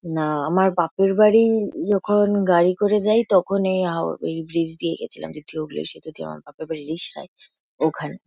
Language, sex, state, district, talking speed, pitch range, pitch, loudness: Bengali, female, West Bengal, Kolkata, 175 wpm, 160-200 Hz, 175 Hz, -21 LUFS